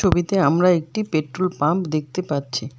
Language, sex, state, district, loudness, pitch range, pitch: Bengali, female, West Bengal, Alipurduar, -21 LUFS, 150-185 Hz, 170 Hz